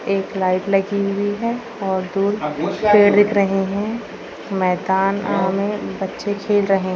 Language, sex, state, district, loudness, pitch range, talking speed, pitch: Hindi, female, Maharashtra, Solapur, -19 LUFS, 190-205 Hz, 155 wpm, 195 Hz